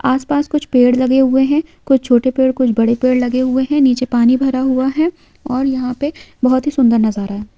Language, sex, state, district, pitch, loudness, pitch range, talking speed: Hindi, female, Jharkhand, Sahebganj, 260 Hz, -15 LUFS, 250-270 Hz, 220 wpm